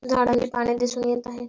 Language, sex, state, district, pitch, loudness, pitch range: Marathi, female, Maharashtra, Pune, 245 Hz, -23 LUFS, 240-245 Hz